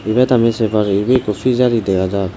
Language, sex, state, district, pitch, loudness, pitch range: Chakma, male, Tripura, Dhalai, 110 Hz, -15 LUFS, 100-125 Hz